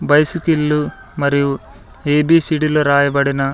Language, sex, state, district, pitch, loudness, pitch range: Telugu, male, Andhra Pradesh, Sri Satya Sai, 150 Hz, -15 LUFS, 140-155 Hz